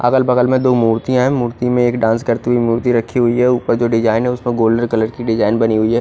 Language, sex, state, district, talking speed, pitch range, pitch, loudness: Hindi, male, Odisha, Khordha, 280 wpm, 115-125 Hz, 120 Hz, -15 LUFS